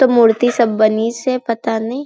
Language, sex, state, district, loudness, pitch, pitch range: Hindi, female, Chhattisgarh, Balrampur, -15 LUFS, 235 Hz, 225-245 Hz